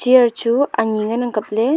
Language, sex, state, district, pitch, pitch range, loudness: Wancho, female, Arunachal Pradesh, Longding, 235 Hz, 220-245 Hz, -17 LUFS